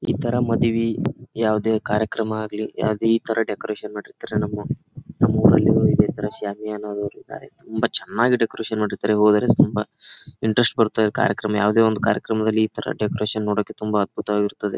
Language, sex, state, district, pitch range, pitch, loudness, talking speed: Kannada, male, Karnataka, Bijapur, 105-115 Hz, 110 Hz, -21 LUFS, 145 wpm